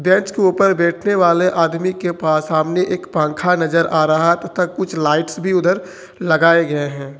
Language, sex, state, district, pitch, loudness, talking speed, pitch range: Hindi, male, Jharkhand, Ranchi, 170 Hz, -16 LUFS, 185 wpm, 160-180 Hz